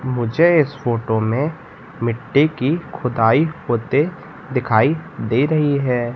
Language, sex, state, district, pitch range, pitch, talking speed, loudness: Hindi, male, Madhya Pradesh, Katni, 120-155 Hz, 130 Hz, 115 wpm, -18 LUFS